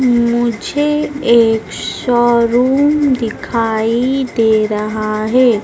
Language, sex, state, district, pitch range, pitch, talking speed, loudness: Hindi, female, Madhya Pradesh, Dhar, 225-260 Hz, 235 Hz, 75 wpm, -14 LUFS